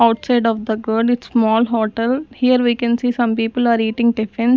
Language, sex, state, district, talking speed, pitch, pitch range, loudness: English, female, Punjab, Kapurthala, 210 wpm, 235 Hz, 225-245 Hz, -17 LUFS